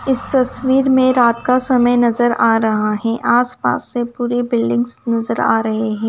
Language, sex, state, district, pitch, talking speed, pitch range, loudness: Hindi, female, Punjab, Kapurthala, 240 Hz, 175 wpm, 225-250 Hz, -16 LUFS